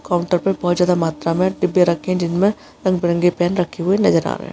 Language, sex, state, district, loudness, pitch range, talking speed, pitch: Hindi, female, Bihar, Araria, -18 LUFS, 170-185 Hz, 240 wpm, 180 Hz